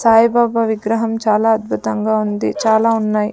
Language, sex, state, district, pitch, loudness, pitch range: Telugu, female, Andhra Pradesh, Sri Satya Sai, 220 Hz, -16 LUFS, 215-225 Hz